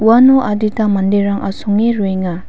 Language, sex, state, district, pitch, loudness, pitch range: Garo, female, Meghalaya, West Garo Hills, 205 Hz, -14 LUFS, 195-220 Hz